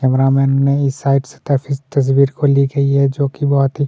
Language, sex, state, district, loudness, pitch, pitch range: Hindi, male, Chhattisgarh, Kabirdham, -15 LUFS, 140 Hz, 135-140 Hz